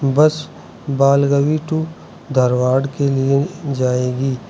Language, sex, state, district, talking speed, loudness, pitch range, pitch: Hindi, male, Arunachal Pradesh, Lower Dibang Valley, 95 wpm, -17 LUFS, 130-150 Hz, 140 Hz